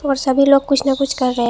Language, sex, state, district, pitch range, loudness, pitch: Hindi, female, Assam, Hailakandi, 265-275 Hz, -15 LUFS, 275 Hz